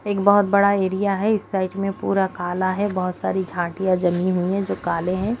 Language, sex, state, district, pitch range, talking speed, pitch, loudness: Hindi, female, Bihar, Madhepura, 180-200 Hz, 220 wpm, 190 Hz, -21 LUFS